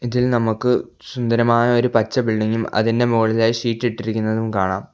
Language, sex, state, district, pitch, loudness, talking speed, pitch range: Malayalam, male, Kerala, Kollam, 115 Hz, -19 LUFS, 135 wpm, 110-120 Hz